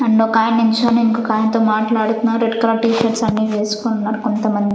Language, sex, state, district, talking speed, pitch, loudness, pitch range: Telugu, female, Andhra Pradesh, Sri Satya Sai, 190 wpm, 225 Hz, -16 LUFS, 220-230 Hz